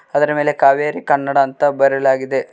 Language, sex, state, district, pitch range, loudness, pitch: Kannada, male, Karnataka, Koppal, 135-145 Hz, -15 LUFS, 140 Hz